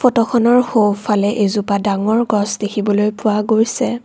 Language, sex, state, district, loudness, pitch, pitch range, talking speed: Assamese, female, Assam, Kamrup Metropolitan, -16 LUFS, 215 Hz, 205-235 Hz, 120 wpm